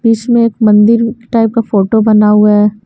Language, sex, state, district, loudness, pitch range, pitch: Hindi, female, Bihar, West Champaran, -9 LUFS, 210-230 Hz, 220 Hz